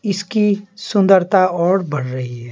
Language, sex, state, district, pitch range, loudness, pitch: Hindi, male, Bihar, Patna, 150-205 Hz, -17 LUFS, 190 Hz